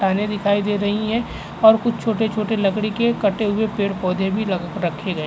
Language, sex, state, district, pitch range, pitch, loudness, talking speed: Hindi, male, Uttar Pradesh, Jalaun, 195-220 Hz, 205 Hz, -20 LUFS, 205 wpm